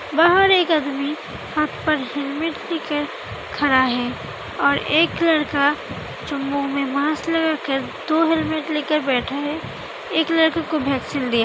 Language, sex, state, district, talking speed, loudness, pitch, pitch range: Hindi, female, Uttar Pradesh, Hamirpur, 155 wpm, -20 LUFS, 300 Hz, 280-320 Hz